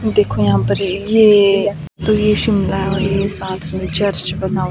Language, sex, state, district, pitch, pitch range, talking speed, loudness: Hindi, female, Himachal Pradesh, Shimla, 195 Hz, 180-205 Hz, 180 wpm, -15 LUFS